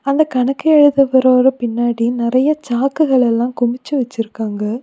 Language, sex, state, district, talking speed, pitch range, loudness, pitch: Tamil, female, Tamil Nadu, Nilgiris, 110 wpm, 235-275 Hz, -15 LUFS, 255 Hz